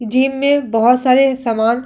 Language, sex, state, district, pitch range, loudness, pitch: Hindi, female, Uttar Pradesh, Hamirpur, 235-270 Hz, -14 LUFS, 255 Hz